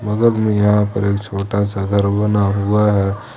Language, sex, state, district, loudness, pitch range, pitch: Hindi, male, Jharkhand, Ranchi, -16 LUFS, 100-105 Hz, 100 Hz